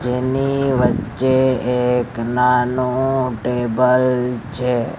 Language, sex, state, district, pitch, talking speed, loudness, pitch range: Gujarati, male, Gujarat, Gandhinagar, 125 Hz, 70 wpm, -18 LUFS, 125-130 Hz